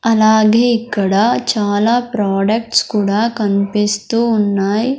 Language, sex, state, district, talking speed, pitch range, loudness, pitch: Telugu, male, Andhra Pradesh, Sri Satya Sai, 85 wpm, 205-230 Hz, -14 LUFS, 215 Hz